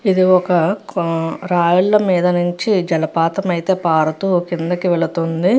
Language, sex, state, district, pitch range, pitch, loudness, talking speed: Telugu, female, Andhra Pradesh, Chittoor, 165-185 Hz, 175 Hz, -16 LUFS, 120 wpm